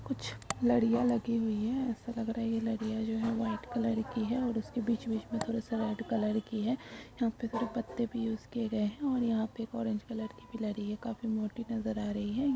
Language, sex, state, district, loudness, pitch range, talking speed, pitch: Hindi, female, Jharkhand, Jamtara, -34 LUFS, 220-235 Hz, 255 wpm, 230 Hz